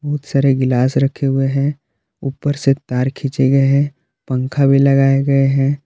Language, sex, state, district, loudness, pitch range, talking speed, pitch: Hindi, male, Jharkhand, Palamu, -16 LUFS, 135-140 Hz, 175 wpm, 135 Hz